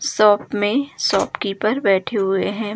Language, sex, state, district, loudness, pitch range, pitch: Hindi, female, Jharkhand, Jamtara, -19 LUFS, 200-215 Hz, 210 Hz